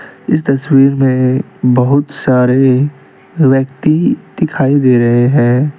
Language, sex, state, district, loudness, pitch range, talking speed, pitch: Hindi, male, Jharkhand, Deoghar, -12 LUFS, 125-140 Hz, 105 wpm, 135 Hz